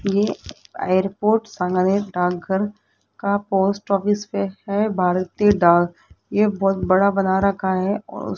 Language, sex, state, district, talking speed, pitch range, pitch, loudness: Hindi, female, Rajasthan, Jaipur, 135 wpm, 185-205 Hz, 195 Hz, -20 LUFS